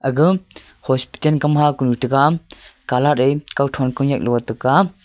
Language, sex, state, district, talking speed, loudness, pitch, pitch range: Wancho, male, Arunachal Pradesh, Longding, 155 wpm, -18 LUFS, 140 Hz, 130-150 Hz